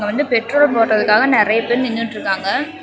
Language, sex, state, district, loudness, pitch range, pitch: Tamil, female, Tamil Nadu, Namakkal, -15 LUFS, 210-265 Hz, 230 Hz